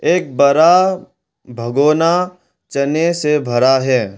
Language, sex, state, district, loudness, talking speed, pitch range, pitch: Hindi, male, Arunachal Pradesh, Longding, -14 LUFS, 100 wpm, 130-175 Hz, 150 Hz